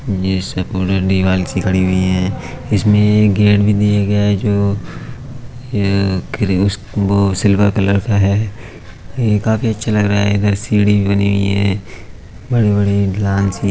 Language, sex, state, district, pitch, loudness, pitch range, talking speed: Hindi, male, Uttar Pradesh, Budaun, 100 Hz, -15 LUFS, 95-105 Hz, 135 wpm